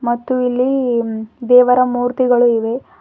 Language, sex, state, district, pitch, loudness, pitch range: Kannada, female, Karnataka, Bidar, 245 Hz, -15 LUFS, 240-250 Hz